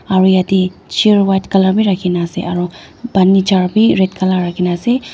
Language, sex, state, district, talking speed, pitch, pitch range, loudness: Nagamese, female, Nagaland, Dimapur, 175 wpm, 190 Hz, 180-195 Hz, -13 LUFS